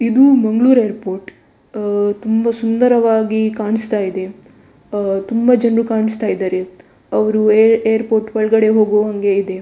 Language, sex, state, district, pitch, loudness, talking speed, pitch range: Kannada, female, Karnataka, Dakshina Kannada, 220 Hz, -15 LUFS, 105 wpm, 205-225 Hz